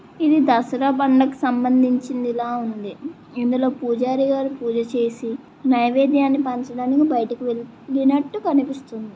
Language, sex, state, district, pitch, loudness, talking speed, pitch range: Telugu, female, Andhra Pradesh, Srikakulam, 255 Hz, -20 LUFS, 100 wpm, 240-275 Hz